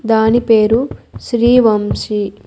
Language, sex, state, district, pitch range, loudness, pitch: Telugu, female, Andhra Pradesh, Annamaya, 215-235 Hz, -13 LUFS, 225 Hz